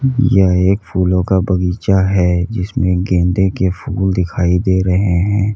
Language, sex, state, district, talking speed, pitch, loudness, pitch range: Hindi, male, Uttar Pradesh, Lalitpur, 150 wpm, 95 Hz, -15 LUFS, 90-95 Hz